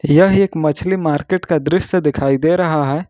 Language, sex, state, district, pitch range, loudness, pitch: Hindi, male, Jharkhand, Ranchi, 150-185 Hz, -16 LUFS, 160 Hz